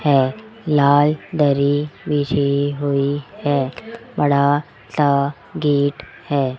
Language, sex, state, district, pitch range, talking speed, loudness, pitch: Hindi, male, Rajasthan, Jaipur, 140-150 Hz, 90 wpm, -19 LUFS, 145 Hz